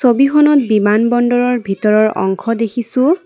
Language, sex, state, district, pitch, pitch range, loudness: Assamese, female, Assam, Kamrup Metropolitan, 240 Hz, 215-255 Hz, -13 LUFS